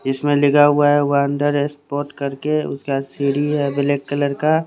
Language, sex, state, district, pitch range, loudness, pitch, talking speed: Hindi, male, Chandigarh, Chandigarh, 140-145 Hz, -18 LUFS, 145 Hz, 165 wpm